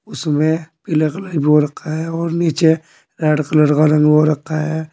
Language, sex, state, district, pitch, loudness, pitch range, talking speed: Hindi, male, Uttar Pradesh, Saharanpur, 155 Hz, -16 LUFS, 150-160 Hz, 185 wpm